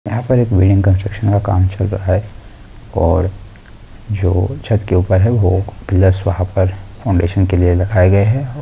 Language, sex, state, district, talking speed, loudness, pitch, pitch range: Hindi, male, Bihar, Purnia, 165 wpm, -15 LUFS, 100 Hz, 95-105 Hz